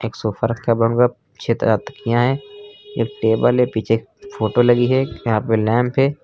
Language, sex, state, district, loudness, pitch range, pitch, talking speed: Hindi, male, Uttar Pradesh, Lucknow, -18 LUFS, 115-135 Hz, 120 Hz, 185 wpm